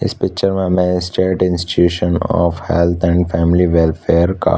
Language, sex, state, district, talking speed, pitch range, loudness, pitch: Hindi, male, Chhattisgarh, Korba, 145 wpm, 85-90 Hz, -15 LUFS, 85 Hz